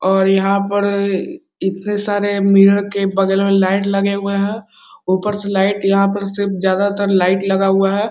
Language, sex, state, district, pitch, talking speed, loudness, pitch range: Hindi, male, Bihar, Muzaffarpur, 200 Hz, 175 wpm, -16 LUFS, 195-200 Hz